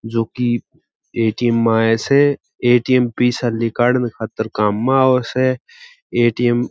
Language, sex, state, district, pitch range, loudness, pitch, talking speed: Marwari, male, Rajasthan, Churu, 115-125 Hz, -17 LUFS, 120 Hz, 135 wpm